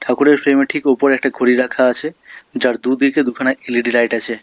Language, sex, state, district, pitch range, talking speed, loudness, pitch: Bengali, male, West Bengal, Alipurduar, 125-140 Hz, 205 wpm, -15 LUFS, 130 Hz